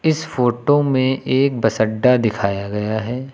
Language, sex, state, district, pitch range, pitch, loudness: Hindi, male, Uttar Pradesh, Lucknow, 110-135 Hz, 125 Hz, -18 LUFS